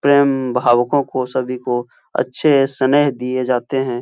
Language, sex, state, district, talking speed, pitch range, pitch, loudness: Hindi, male, Uttar Pradesh, Etah, 150 wpm, 125-140 Hz, 130 Hz, -17 LUFS